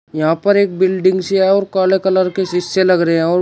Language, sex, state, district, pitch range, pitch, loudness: Hindi, male, Uttar Pradesh, Shamli, 180-190 Hz, 185 Hz, -14 LUFS